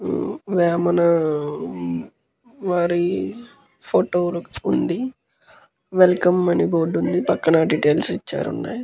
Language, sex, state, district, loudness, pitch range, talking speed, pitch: Telugu, male, Andhra Pradesh, Guntur, -20 LUFS, 160-185 Hz, 80 wpm, 175 Hz